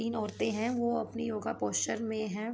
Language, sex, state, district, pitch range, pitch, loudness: Hindi, female, Jharkhand, Sahebganj, 210-230 Hz, 225 Hz, -33 LUFS